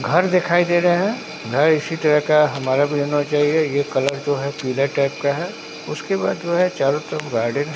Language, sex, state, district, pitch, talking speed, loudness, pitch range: Hindi, male, Bihar, Katihar, 150 Hz, 225 wpm, -19 LUFS, 140-165 Hz